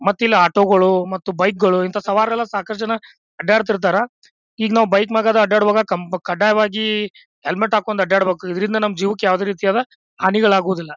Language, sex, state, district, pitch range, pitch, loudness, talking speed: Kannada, male, Karnataka, Bijapur, 190-215 Hz, 205 Hz, -17 LUFS, 155 wpm